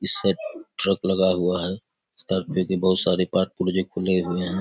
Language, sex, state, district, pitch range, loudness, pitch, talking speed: Hindi, male, Bihar, Saharsa, 90-95 Hz, -23 LUFS, 95 Hz, 210 wpm